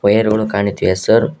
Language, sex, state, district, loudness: Kannada, male, Karnataka, Koppal, -15 LUFS